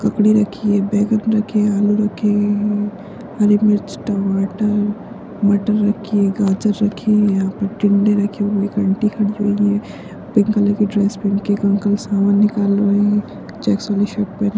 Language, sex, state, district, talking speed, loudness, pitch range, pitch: Hindi, female, Uttarakhand, Tehri Garhwal, 195 wpm, -17 LUFS, 205-210 Hz, 205 Hz